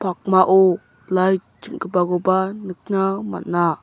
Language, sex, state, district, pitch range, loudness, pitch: Garo, male, Meghalaya, South Garo Hills, 180-190 Hz, -19 LUFS, 185 Hz